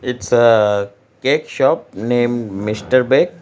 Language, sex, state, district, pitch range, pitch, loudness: English, male, Gujarat, Valsad, 105-125 Hz, 120 Hz, -16 LUFS